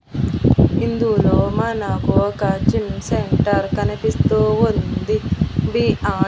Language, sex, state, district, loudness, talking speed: Telugu, female, Andhra Pradesh, Annamaya, -18 LUFS, 85 wpm